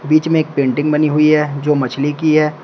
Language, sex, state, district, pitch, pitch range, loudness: Hindi, male, Uttar Pradesh, Shamli, 150 Hz, 145-155 Hz, -15 LUFS